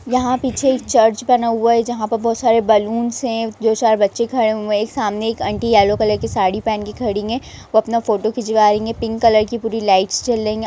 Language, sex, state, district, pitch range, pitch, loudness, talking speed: Hindi, female, Chhattisgarh, Raigarh, 215-235 Hz, 225 Hz, -17 LUFS, 235 wpm